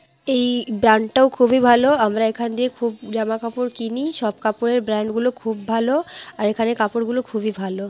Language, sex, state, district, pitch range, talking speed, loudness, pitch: Bengali, female, West Bengal, Jhargram, 220-250 Hz, 160 wpm, -20 LUFS, 230 Hz